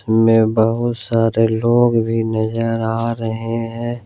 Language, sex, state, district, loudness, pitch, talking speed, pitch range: Hindi, male, Jharkhand, Ranchi, -17 LUFS, 115 Hz, 135 wpm, 110-115 Hz